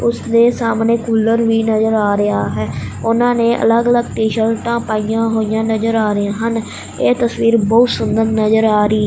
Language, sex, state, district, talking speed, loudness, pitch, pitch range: Punjabi, male, Punjab, Fazilka, 180 wpm, -15 LUFS, 225 Hz, 215-230 Hz